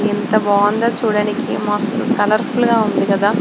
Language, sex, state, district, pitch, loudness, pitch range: Telugu, female, Andhra Pradesh, Srikakulam, 215 Hz, -16 LUFS, 210-230 Hz